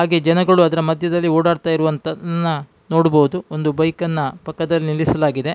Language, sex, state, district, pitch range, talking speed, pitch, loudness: Kannada, male, Karnataka, Dakshina Kannada, 155-170 Hz, 130 wpm, 165 Hz, -18 LUFS